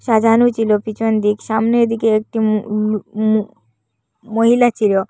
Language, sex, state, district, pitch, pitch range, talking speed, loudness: Bengali, female, Assam, Hailakandi, 215 Hz, 210-225 Hz, 95 wpm, -16 LUFS